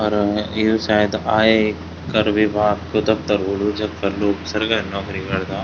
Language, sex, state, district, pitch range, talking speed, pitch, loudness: Garhwali, male, Uttarakhand, Tehri Garhwal, 100-110 Hz, 150 wpm, 105 Hz, -19 LUFS